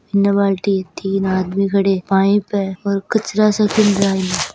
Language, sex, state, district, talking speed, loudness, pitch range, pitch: Hindi, female, Rajasthan, Churu, 120 wpm, -17 LUFS, 195-200 Hz, 195 Hz